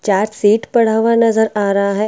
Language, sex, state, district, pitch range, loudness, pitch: Hindi, female, Bihar, Katihar, 205-225 Hz, -14 LUFS, 215 Hz